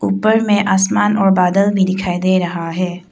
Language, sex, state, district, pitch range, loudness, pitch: Hindi, female, Arunachal Pradesh, Papum Pare, 180-200 Hz, -15 LUFS, 190 Hz